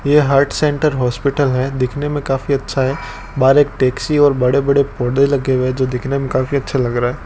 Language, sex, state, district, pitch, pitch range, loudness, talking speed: Hindi, male, Rajasthan, Bikaner, 135 Hz, 130-140 Hz, -16 LUFS, 230 wpm